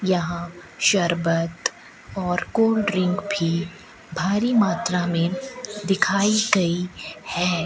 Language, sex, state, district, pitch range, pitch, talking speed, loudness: Hindi, female, Rajasthan, Bikaner, 175-205 Hz, 180 Hz, 95 wpm, -22 LUFS